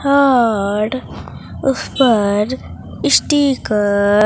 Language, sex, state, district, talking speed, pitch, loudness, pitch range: Hindi, female, Bihar, Katihar, 70 wpm, 235 Hz, -15 LUFS, 205-270 Hz